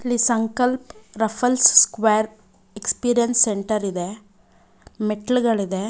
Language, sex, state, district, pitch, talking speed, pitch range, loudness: Kannada, female, Karnataka, Bangalore, 220 Hz, 80 wpm, 210-240 Hz, -19 LUFS